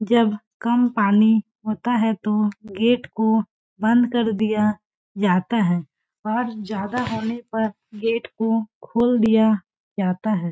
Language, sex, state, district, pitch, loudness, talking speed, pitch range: Hindi, female, Chhattisgarh, Balrampur, 220 Hz, -21 LUFS, 130 wpm, 210-230 Hz